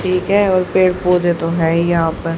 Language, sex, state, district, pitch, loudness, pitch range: Hindi, female, Haryana, Rohtak, 180 Hz, -15 LUFS, 165-185 Hz